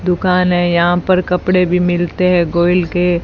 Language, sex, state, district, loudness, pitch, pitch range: Hindi, female, Rajasthan, Bikaner, -14 LUFS, 180 Hz, 175-180 Hz